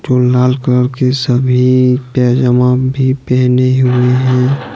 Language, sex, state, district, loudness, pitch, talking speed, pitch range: Hindi, male, Jharkhand, Deoghar, -11 LUFS, 125 Hz, 125 wpm, 125-130 Hz